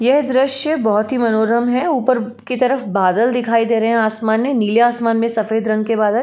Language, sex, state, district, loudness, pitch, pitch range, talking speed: Hindi, female, Uttar Pradesh, Jalaun, -16 LUFS, 230 Hz, 220-255 Hz, 220 wpm